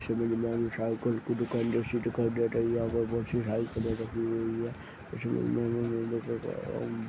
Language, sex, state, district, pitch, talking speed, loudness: Hindi, male, Uttarakhand, Uttarkashi, 115 Hz, 50 wpm, -31 LUFS